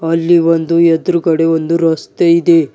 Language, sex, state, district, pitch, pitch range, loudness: Kannada, male, Karnataka, Bidar, 165 Hz, 165-170 Hz, -12 LUFS